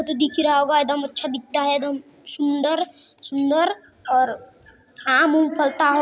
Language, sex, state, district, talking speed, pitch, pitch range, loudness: Hindi, male, Chhattisgarh, Sarguja, 170 wpm, 290 Hz, 285-310 Hz, -21 LUFS